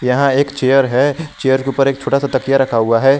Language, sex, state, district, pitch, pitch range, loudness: Hindi, male, Jharkhand, Garhwa, 135 Hz, 130-140 Hz, -15 LUFS